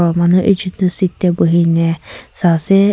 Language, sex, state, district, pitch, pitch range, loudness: Nagamese, female, Nagaland, Kohima, 180 Hz, 170-190 Hz, -14 LUFS